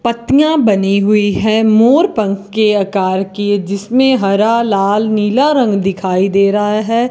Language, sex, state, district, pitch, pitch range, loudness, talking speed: Hindi, female, Rajasthan, Bikaner, 210 Hz, 200-235 Hz, -12 LUFS, 150 wpm